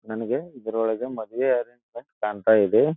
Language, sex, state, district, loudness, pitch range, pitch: Kannada, male, Karnataka, Dharwad, -24 LUFS, 110-125 Hz, 115 Hz